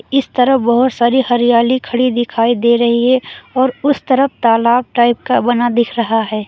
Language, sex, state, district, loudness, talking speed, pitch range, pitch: Hindi, female, Uttar Pradesh, Lucknow, -13 LUFS, 185 wpm, 235-255 Hz, 240 Hz